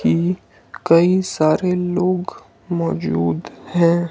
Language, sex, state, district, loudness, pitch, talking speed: Hindi, male, Himachal Pradesh, Shimla, -19 LUFS, 170 Hz, 85 wpm